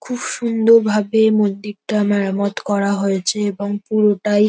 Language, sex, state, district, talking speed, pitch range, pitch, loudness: Bengali, female, West Bengal, North 24 Parganas, 120 wpm, 200-215 Hz, 210 Hz, -17 LUFS